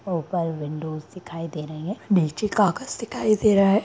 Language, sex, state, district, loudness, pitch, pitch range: Hindi, female, Bihar, Darbhanga, -24 LUFS, 180 Hz, 160-205 Hz